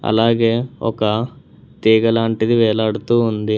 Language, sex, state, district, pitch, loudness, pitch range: Telugu, male, Telangana, Hyderabad, 115 Hz, -17 LUFS, 110-115 Hz